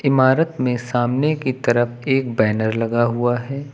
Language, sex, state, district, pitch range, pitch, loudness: Hindi, male, Uttar Pradesh, Lucknow, 120-135 Hz, 125 Hz, -19 LUFS